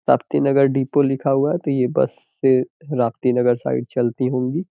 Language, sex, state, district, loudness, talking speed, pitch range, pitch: Hindi, male, Uttar Pradesh, Gorakhpur, -19 LUFS, 165 wpm, 125-140 Hz, 130 Hz